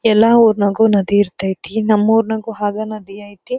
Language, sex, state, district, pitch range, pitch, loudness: Kannada, female, Karnataka, Dharwad, 200-220 Hz, 215 Hz, -15 LUFS